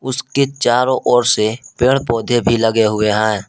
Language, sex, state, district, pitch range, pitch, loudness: Hindi, male, Jharkhand, Palamu, 110-130 Hz, 120 Hz, -15 LUFS